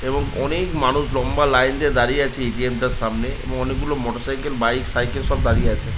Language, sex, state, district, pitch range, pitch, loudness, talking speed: Bengali, male, West Bengal, Dakshin Dinajpur, 125-140 Hz, 130 Hz, -21 LUFS, 230 wpm